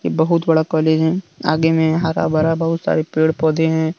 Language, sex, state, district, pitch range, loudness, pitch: Hindi, male, Jharkhand, Deoghar, 160-165 Hz, -17 LUFS, 160 Hz